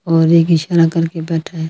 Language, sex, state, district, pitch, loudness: Hindi, female, Delhi, New Delhi, 165 Hz, -14 LUFS